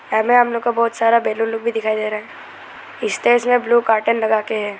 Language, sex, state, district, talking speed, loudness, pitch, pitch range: Hindi, male, Arunachal Pradesh, Lower Dibang Valley, 250 wpm, -17 LUFS, 225 Hz, 220-235 Hz